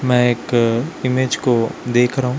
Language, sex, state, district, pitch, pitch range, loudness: Hindi, male, Chhattisgarh, Raipur, 125 Hz, 120-130 Hz, -18 LUFS